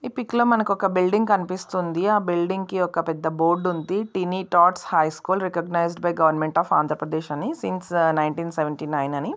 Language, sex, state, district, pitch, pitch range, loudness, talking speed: Telugu, female, Andhra Pradesh, Visakhapatnam, 175 Hz, 160-190 Hz, -22 LUFS, 190 wpm